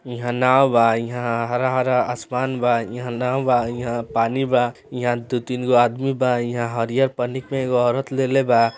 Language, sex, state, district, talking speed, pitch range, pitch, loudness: Bhojpuri, male, Bihar, East Champaran, 190 wpm, 120-130 Hz, 125 Hz, -20 LUFS